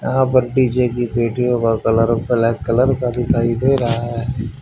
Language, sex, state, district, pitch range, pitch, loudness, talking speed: Hindi, male, Haryana, Jhajjar, 115-125 Hz, 120 Hz, -17 LUFS, 180 wpm